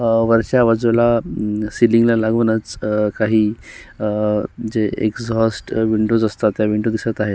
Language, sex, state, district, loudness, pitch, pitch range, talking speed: Marathi, male, Maharashtra, Solapur, -18 LUFS, 110 Hz, 105-115 Hz, 155 wpm